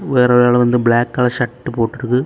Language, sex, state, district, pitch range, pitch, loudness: Tamil, male, Tamil Nadu, Kanyakumari, 120-125 Hz, 125 Hz, -15 LUFS